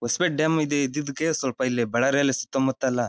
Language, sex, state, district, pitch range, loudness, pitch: Kannada, male, Karnataka, Bellary, 130-150 Hz, -24 LUFS, 135 Hz